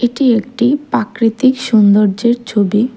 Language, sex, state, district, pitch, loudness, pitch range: Bengali, female, Tripura, West Tripura, 235 Hz, -13 LUFS, 215-255 Hz